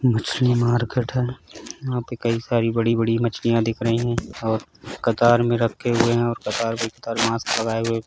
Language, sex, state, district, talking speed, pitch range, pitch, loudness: Hindi, male, Uttar Pradesh, Hamirpur, 195 wpm, 115-120 Hz, 115 Hz, -22 LUFS